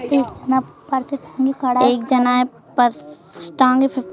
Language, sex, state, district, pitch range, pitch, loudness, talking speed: Hindi, female, Madhya Pradesh, Bhopal, 245-265 Hz, 255 Hz, -18 LUFS, 60 wpm